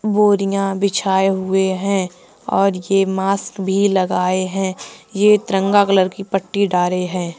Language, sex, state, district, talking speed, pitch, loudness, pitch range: Hindi, female, Uttar Pradesh, Saharanpur, 140 wpm, 195 Hz, -17 LUFS, 185-200 Hz